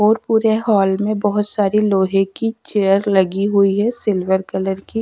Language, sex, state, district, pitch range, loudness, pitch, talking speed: Hindi, female, Bihar, Kaimur, 195-215 Hz, -17 LUFS, 205 Hz, 180 wpm